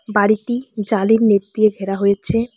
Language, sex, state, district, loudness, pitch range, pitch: Bengali, female, West Bengal, Alipurduar, -17 LUFS, 200-225 Hz, 215 Hz